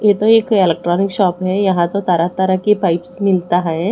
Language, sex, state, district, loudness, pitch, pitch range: Hindi, female, Odisha, Khordha, -15 LUFS, 185 Hz, 175-200 Hz